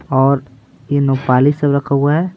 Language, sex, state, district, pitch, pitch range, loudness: Hindi, male, Bihar, Patna, 140 Hz, 130-145 Hz, -15 LUFS